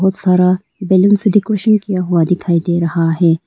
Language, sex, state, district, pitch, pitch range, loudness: Hindi, female, Arunachal Pradesh, Lower Dibang Valley, 185 Hz, 170-200 Hz, -14 LUFS